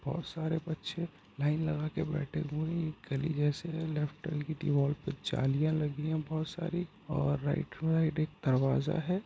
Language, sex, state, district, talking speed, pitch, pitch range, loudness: Hindi, male, Bihar, Gopalganj, 190 wpm, 155 Hz, 145-160 Hz, -34 LUFS